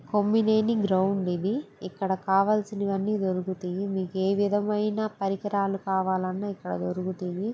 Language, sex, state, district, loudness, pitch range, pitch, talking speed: Telugu, female, Andhra Pradesh, Guntur, -27 LUFS, 185-205 Hz, 195 Hz, 105 wpm